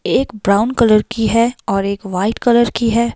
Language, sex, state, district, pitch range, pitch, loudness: Hindi, female, Himachal Pradesh, Shimla, 205-235 Hz, 225 Hz, -15 LUFS